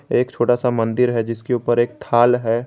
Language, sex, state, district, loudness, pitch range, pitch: Hindi, male, Jharkhand, Garhwa, -18 LUFS, 115-125 Hz, 120 Hz